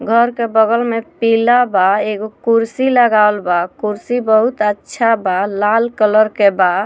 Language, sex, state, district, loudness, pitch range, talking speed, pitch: Bhojpuri, female, Bihar, Muzaffarpur, -14 LUFS, 205-235 Hz, 155 wpm, 220 Hz